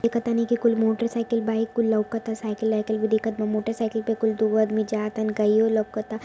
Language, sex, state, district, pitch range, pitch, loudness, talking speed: Hindi, female, Uttar Pradesh, Varanasi, 215-225 Hz, 220 Hz, -24 LUFS, 180 wpm